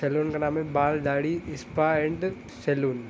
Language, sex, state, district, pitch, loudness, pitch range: Hindi, male, Jharkhand, Sahebganj, 150 Hz, -27 LUFS, 140-155 Hz